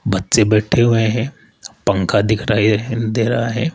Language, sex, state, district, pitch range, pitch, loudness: Hindi, male, Rajasthan, Jaipur, 105-115 Hz, 110 Hz, -16 LUFS